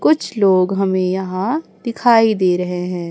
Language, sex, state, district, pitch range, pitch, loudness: Hindi, female, Chhattisgarh, Raipur, 185-225 Hz, 190 Hz, -16 LUFS